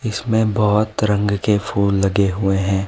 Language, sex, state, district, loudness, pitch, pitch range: Hindi, male, Himachal Pradesh, Shimla, -18 LUFS, 105 Hz, 100-105 Hz